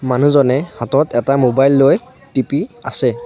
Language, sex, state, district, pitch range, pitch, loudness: Assamese, male, Assam, Sonitpur, 125-140 Hz, 135 Hz, -15 LUFS